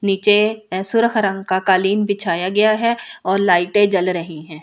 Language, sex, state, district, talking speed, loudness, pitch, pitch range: Hindi, female, Delhi, New Delhi, 170 wpm, -17 LUFS, 195 Hz, 185-210 Hz